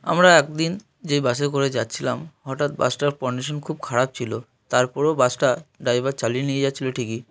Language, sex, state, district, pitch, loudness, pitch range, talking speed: Bengali, male, West Bengal, North 24 Parganas, 135 Hz, -22 LUFS, 125-145 Hz, 180 wpm